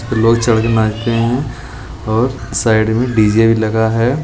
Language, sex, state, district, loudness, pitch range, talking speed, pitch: Hindi, male, Bihar, Jamui, -14 LUFS, 110-120 Hz, 170 wpm, 115 Hz